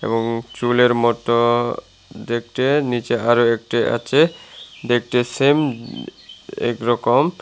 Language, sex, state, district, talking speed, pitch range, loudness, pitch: Bengali, male, Tripura, Unakoti, 90 wpm, 120-125 Hz, -18 LUFS, 120 Hz